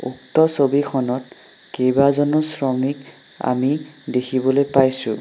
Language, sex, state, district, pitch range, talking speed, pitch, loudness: Assamese, male, Assam, Sonitpur, 130-145 Hz, 70 wpm, 135 Hz, -19 LUFS